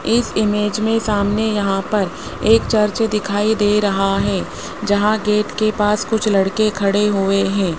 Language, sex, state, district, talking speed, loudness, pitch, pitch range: Hindi, male, Rajasthan, Jaipur, 160 wpm, -17 LUFS, 210 Hz, 200-215 Hz